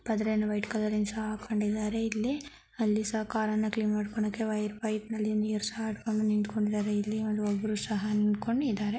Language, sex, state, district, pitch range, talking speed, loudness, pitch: Kannada, female, Karnataka, Dharwad, 210-220 Hz, 175 wpm, -31 LUFS, 215 Hz